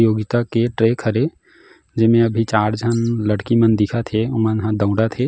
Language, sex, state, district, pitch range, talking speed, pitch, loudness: Chhattisgarhi, male, Chhattisgarh, Jashpur, 110-115 Hz, 195 wpm, 115 Hz, -18 LUFS